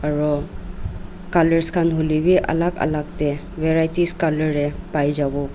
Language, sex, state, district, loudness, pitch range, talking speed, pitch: Nagamese, female, Nagaland, Dimapur, -18 LUFS, 150-170 Hz, 140 wpm, 160 Hz